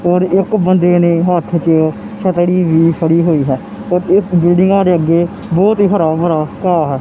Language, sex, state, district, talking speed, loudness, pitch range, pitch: Punjabi, male, Punjab, Kapurthala, 190 wpm, -12 LUFS, 165-185 Hz, 175 Hz